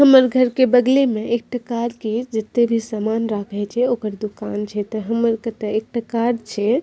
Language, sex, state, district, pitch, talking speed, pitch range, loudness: Maithili, female, Bihar, Madhepura, 230 Hz, 200 wpm, 215-245 Hz, -20 LUFS